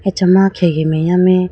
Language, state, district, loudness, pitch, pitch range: Idu Mishmi, Arunachal Pradesh, Lower Dibang Valley, -13 LUFS, 180 Hz, 170-190 Hz